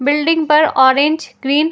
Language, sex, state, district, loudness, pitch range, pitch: Hindi, female, Uttar Pradesh, Jyotiba Phule Nagar, -13 LUFS, 280-310 Hz, 300 Hz